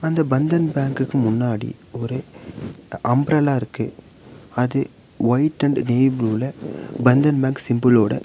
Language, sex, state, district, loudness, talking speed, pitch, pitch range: Tamil, male, Tamil Nadu, Nilgiris, -20 LUFS, 115 wpm, 130 Hz, 120-145 Hz